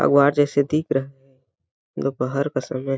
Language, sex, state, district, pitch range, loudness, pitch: Hindi, male, Chhattisgarh, Balrampur, 130-140 Hz, -22 LUFS, 135 Hz